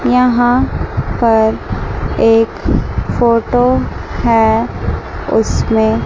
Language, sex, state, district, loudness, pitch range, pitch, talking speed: Hindi, male, Chandigarh, Chandigarh, -14 LUFS, 225-245 Hz, 230 Hz, 60 wpm